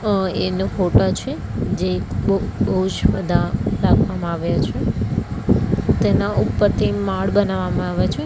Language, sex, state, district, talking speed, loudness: Gujarati, female, Gujarat, Gandhinagar, 125 wpm, -20 LUFS